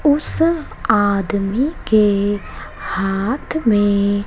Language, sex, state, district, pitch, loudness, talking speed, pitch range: Hindi, female, Madhya Pradesh, Dhar, 210 Hz, -17 LUFS, 70 wpm, 200-275 Hz